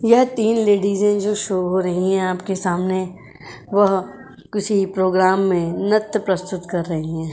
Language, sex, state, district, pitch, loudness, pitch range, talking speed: Hindi, female, Uttar Pradesh, Jyotiba Phule Nagar, 190 Hz, -19 LUFS, 185-205 Hz, 155 wpm